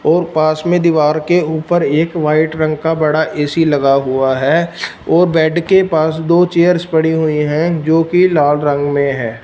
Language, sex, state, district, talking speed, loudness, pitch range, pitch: Hindi, male, Punjab, Fazilka, 190 wpm, -13 LUFS, 150-170 Hz, 160 Hz